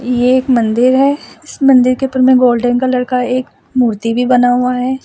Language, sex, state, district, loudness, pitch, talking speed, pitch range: Hindi, male, Assam, Sonitpur, -12 LUFS, 250 Hz, 215 wpm, 245-260 Hz